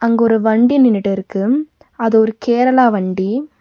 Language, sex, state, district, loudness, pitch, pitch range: Tamil, female, Tamil Nadu, Nilgiris, -14 LUFS, 230 Hz, 215-250 Hz